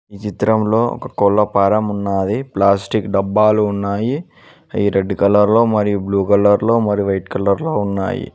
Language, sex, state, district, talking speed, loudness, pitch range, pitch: Telugu, male, Telangana, Mahabubabad, 160 wpm, -16 LUFS, 100-110 Hz, 100 Hz